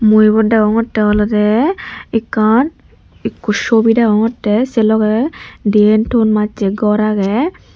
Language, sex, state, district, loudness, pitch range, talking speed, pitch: Chakma, female, Tripura, Unakoti, -13 LUFS, 210-230 Hz, 115 wpm, 220 Hz